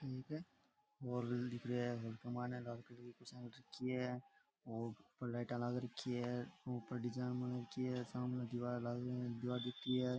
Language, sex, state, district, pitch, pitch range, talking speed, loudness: Rajasthani, male, Rajasthan, Nagaur, 125 Hz, 120-125 Hz, 175 wpm, -45 LUFS